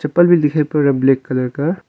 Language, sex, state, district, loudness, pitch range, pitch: Hindi, male, Arunachal Pradesh, Longding, -15 LUFS, 135-165 Hz, 150 Hz